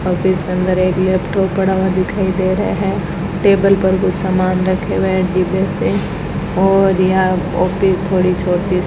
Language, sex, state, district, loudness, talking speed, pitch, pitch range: Hindi, female, Rajasthan, Bikaner, -15 LUFS, 185 wpm, 185 Hz, 185-190 Hz